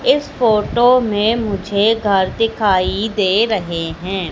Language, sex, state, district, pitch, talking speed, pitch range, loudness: Hindi, female, Madhya Pradesh, Katni, 210 Hz, 125 wpm, 190-225 Hz, -16 LUFS